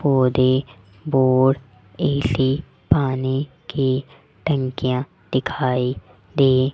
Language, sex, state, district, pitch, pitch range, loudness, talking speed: Hindi, female, Rajasthan, Jaipur, 130 Hz, 125-135 Hz, -21 LUFS, 80 wpm